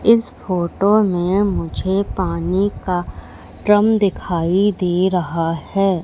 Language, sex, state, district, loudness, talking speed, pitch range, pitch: Hindi, female, Madhya Pradesh, Katni, -18 LUFS, 110 wpm, 170-200 Hz, 185 Hz